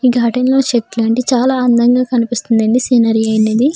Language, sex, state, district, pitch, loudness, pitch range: Telugu, female, Andhra Pradesh, Chittoor, 240 Hz, -13 LUFS, 230-250 Hz